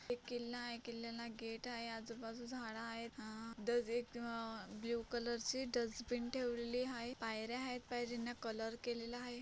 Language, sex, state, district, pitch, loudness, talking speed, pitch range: Marathi, female, Maharashtra, Solapur, 235 Hz, -44 LUFS, 155 wpm, 230-245 Hz